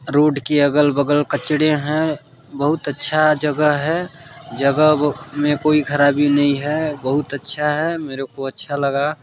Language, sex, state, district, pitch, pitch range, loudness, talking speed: Hindi, male, Chhattisgarh, Balrampur, 145 Hz, 140-150 Hz, -17 LUFS, 150 wpm